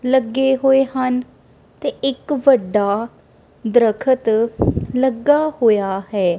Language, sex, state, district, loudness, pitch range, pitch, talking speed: Punjabi, female, Punjab, Kapurthala, -17 LUFS, 220-265 Hz, 250 Hz, 95 wpm